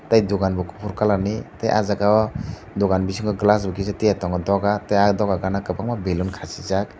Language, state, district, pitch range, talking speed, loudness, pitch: Kokborok, Tripura, Dhalai, 95-105 Hz, 190 wpm, -21 LUFS, 100 Hz